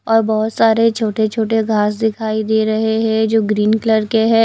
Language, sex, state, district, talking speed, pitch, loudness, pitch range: Hindi, female, Odisha, Nuapada, 200 wpm, 220 Hz, -16 LUFS, 220-225 Hz